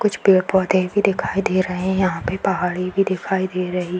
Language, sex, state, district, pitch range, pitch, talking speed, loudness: Hindi, female, Bihar, Darbhanga, 180-195 Hz, 185 Hz, 225 wpm, -20 LUFS